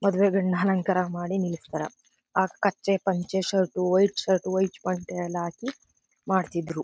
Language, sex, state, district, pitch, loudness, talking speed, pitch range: Kannada, female, Karnataka, Chamarajanagar, 185 Hz, -26 LUFS, 140 wpm, 180-195 Hz